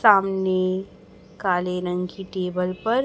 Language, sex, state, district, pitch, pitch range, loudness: Hindi, male, Chhattisgarh, Raipur, 185 Hz, 180-195 Hz, -24 LUFS